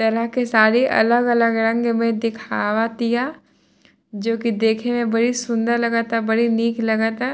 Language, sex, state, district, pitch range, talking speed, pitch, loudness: Bhojpuri, female, Bihar, Saran, 225-235 Hz, 155 wpm, 230 Hz, -19 LUFS